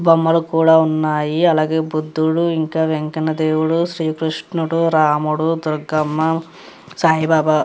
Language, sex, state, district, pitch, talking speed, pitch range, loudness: Telugu, female, Andhra Pradesh, Chittoor, 160 Hz, 110 wpm, 155-165 Hz, -17 LUFS